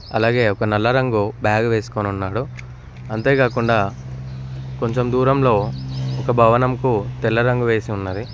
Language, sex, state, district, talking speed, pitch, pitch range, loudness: Telugu, male, Telangana, Mahabubabad, 115 wpm, 115 Hz, 100-125 Hz, -19 LUFS